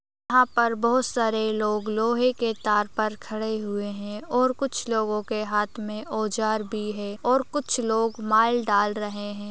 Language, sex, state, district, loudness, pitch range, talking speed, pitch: Hindi, female, Bihar, Jahanabad, -25 LUFS, 210-235 Hz, 175 wpm, 220 Hz